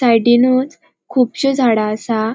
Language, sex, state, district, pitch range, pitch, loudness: Konkani, female, Goa, North and South Goa, 225-265 Hz, 245 Hz, -15 LUFS